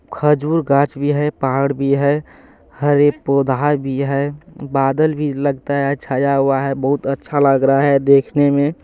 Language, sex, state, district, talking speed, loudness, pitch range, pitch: Maithili, male, Bihar, Supaul, 170 wpm, -16 LUFS, 135-145 Hz, 140 Hz